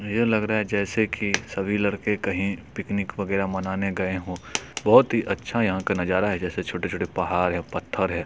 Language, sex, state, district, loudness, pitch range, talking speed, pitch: Hindi, male, Bihar, Supaul, -25 LUFS, 95-105 Hz, 205 wpm, 100 Hz